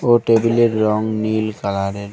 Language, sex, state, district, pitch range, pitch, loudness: Bengali, male, West Bengal, Cooch Behar, 100-115 Hz, 110 Hz, -17 LUFS